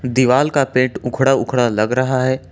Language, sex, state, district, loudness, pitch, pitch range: Hindi, male, Jharkhand, Ranchi, -16 LUFS, 130 Hz, 125-130 Hz